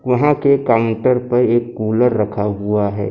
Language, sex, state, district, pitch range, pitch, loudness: Hindi, male, Maharashtra, Gondia, 105-125 Hz, 120 Hz, -16 LUFS